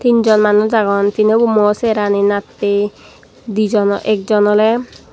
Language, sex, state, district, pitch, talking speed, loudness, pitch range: Chakma, female, Tripura, Dhalai, 210 Hz, 130 wpm, -14 LUFS, 205-220 Hz